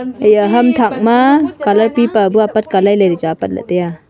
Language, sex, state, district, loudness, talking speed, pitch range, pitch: Wancho, female, Arunachal Pradesh, Longding, -12 LUFS, 235 wpm, 195-240 Hz, 215 Hz